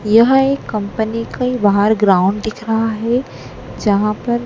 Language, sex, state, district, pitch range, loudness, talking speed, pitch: Hindi, female, Madhya Pradesh, Dhar, 210-240 Hz, -16 LUFS, 150 wpm, 220 Hz